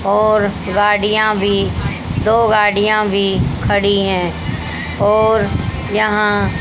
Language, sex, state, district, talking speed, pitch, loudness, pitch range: Hindi, female, Haryana, Jhajjar, 90 wpm, 205 Hz, -15 LUFS, 200-215 Hz